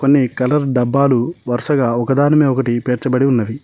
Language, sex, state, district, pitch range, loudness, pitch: Telugu, male, Telangana, Mahabubabad, 120-140 Hz, -16 LUFS, 130 Hz